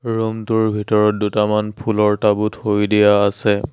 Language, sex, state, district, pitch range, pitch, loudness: Assamese, male, Assam, Sonitpur, 105-110 Hz, 105 Hz, -17 LUFS